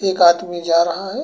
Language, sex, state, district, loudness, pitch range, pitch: Bhojpuri, male, Uttar Pradesh, Gorakhpur, -16 LUFS, 170-190 Hz, 175 Hz